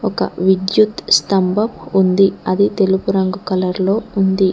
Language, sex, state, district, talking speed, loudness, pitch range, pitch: Telugu, female, Telangana, Mahabubabad, 120 wpm, -16 LUFS, 185-200 Hz, 190 Hz